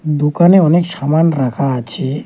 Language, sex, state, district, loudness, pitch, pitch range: Bengali, male, West Bengal, Alipurduar, -13 LUFS, 150 Hz, 135-170 Hz